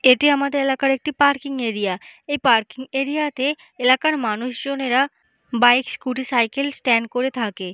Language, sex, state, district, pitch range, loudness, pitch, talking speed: Bengali, female, West Bengal, Paschim Medinipur, 245-280 Hz, -20 LUFS, 265 Hz, 145 wpm